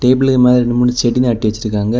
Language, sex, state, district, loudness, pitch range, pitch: Tamil, male, Tamil Nadu, Kanyakumari, -13 LUFS, 115-125 Hz, 120 Hz